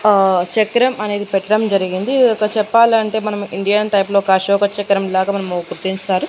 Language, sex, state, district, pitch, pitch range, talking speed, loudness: Telugu, female, Andhra Pradesh, Annamaya, 205 Hz, 195-215 Hz, 155 wpm, -16 LUFS